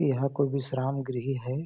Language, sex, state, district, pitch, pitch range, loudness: Hindi, male, Chhattisgarh, Balrampur, 135 Hz, 130-140 Hz, -29 LUFS